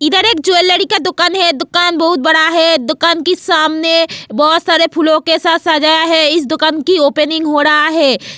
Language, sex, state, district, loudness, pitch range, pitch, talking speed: Hindi, female, Goa, North and South Goa, -11 LUFS, 310-340 Hz, 325 Hz, 195 wpm